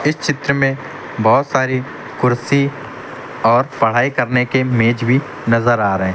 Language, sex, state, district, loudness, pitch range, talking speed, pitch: Hindi, male, Uttar Pradesh, Lucknow, -16 LUFS, 120-140 Hz, 155 wpm, 130 Hz